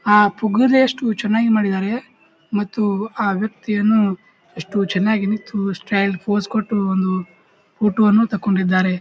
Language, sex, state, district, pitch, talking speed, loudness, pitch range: Kannada, male, Karnataka, Bijapur, 205 Hz, 105 wpm, -18 LUFS, 195-220 Hz